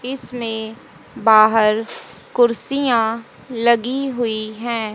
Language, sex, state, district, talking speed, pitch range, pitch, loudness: Hindi, female, Haryana, Jhajjar, 75 wpm, 220-245 Hz, 230 Hz, -18 LUFS